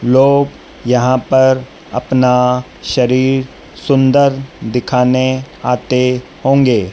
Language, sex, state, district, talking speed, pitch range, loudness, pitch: Hindi, male, Madhya Pradesh, Dhar, 80 wpm, 125-135 Hz, -13 LUFS, 130 Hz